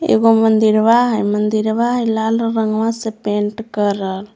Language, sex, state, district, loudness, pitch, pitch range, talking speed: Magahi, female, Jharkhand, Palamu, -16 LUFS, 220 Hz, 210-225 Hz, 110 wpm